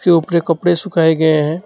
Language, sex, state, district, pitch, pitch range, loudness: Hindi, male, West Bengal, Alipurduar, 165 Hz, 160-175 Hz, -14 LUFS